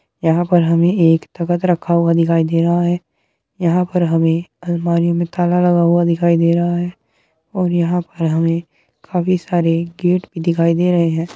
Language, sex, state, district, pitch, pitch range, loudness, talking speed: Hindi, female, Uttar Pradesh, Muzaffarnagar, 170 Hz, 165-175 Hz, -16 LUFS, 185 wpm